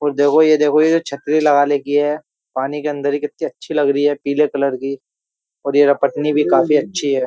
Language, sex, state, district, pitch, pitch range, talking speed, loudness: Hindi, male, Uttar Pradesh, Jyotiba Phule Nagar, 145 Hz, 140-150 Hz, 240 wpm, -16 LUFS